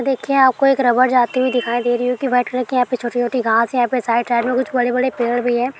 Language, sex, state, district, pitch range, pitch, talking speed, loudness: Hindi, female, Bihar, Araria, 240-255 Hz, 250 Hz, 300 wpm, -17 LUFS